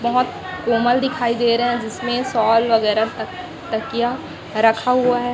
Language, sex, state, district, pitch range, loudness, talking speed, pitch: Hindi, female, Chhattisgarh, Raipur, 225-245 Hz, -19 LUFS, 170 wpm, 235 Hz